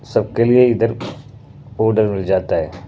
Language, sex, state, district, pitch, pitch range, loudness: Hindi, male, Punjab, Pathankot, 115 Hz, 110-125 Hz, -16 LUFS